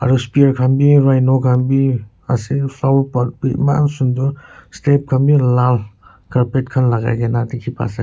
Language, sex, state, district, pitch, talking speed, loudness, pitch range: Nagamese, male, Nagaland, Kohima, 130 Hz, 165 wpm, -16 LUFS, 125-135 Hz